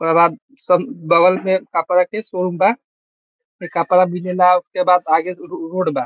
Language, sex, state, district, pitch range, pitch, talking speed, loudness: Bhojpuri, male, Bihar, Saran, 180-215 Hz, 180 Hz, 170 wpm, -17 LUFS